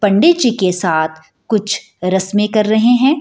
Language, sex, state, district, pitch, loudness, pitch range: Hindi, female, Bihar, Jahanabad, 205 Hz, -14 LUFS, 185-225 Hz